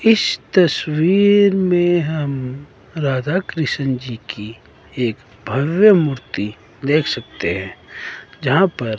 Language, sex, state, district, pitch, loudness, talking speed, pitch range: Hindi, female, Himachal Pradesh, Shimla, 145 Hz, -18 LUFS, 105 wpm, 125-175 Hz